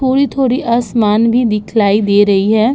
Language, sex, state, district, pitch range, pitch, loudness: Hindi, female, Uttar Pradesh, Budaun, 210-250 Hz, 225 Hz, -12 LUFS